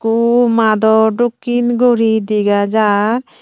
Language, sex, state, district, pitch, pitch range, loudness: Chakma, female, Tripura, Unakoti, 225 Hz, 215-240 Hz, -13 LUFS